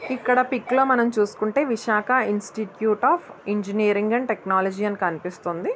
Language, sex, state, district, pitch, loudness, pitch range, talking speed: Telugu, female, Andhra Pradesh, Visakhapatnam, 215 Hz, -22 LUFS, 205-250 Hz, 135 wpm